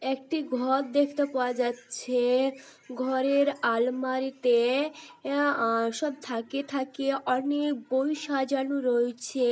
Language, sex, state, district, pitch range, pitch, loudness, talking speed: Bengali, female, West Bengal, North 24 Parganas, 250-280 Hz, 265 Hz, -28 LUFS, 95 wpm